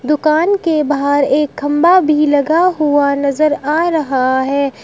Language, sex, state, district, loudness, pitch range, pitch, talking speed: Hindi, female, Uttar Pradesh, Shamli, -13 LUFS, 280-315 Hz, 295 Hz, 150 wpm